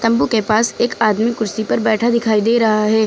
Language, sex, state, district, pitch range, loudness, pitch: Hindi, female, Uttar Pradesh, Lucknow, 220-235 Hz, -16 LUFS, 220 Hz